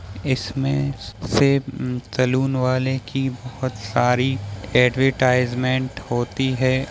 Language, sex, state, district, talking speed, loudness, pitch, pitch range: Hindi, male, Bihar, Samastipur, 85 wpm, -21 LUFS, 130 Hz, 120-135 Hz